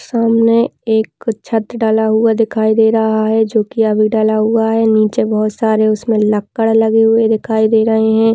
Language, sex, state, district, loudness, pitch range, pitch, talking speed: Hindi, female, Rajasthan, Nagaur, -13 LUFS, 220-225 Hz, 220 Hz, 185 wpm